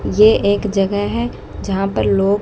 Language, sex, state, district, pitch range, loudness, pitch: Hindi, female, Haryana, Jhajjar, 195-210 Hz, -16 LUFS, 205 Hz